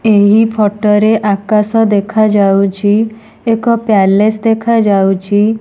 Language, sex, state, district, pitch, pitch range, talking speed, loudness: Odia, female, Odisha, Nuapada, 215 Hz, 205-220 Hz, 85 wpm, -11 LUFS